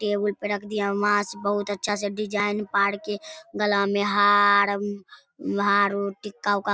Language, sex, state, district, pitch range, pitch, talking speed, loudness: Hindi, female, Bihar, Darbhanga, 200-205 Hz, 205 Hz, 170 wpm, -24 LUFS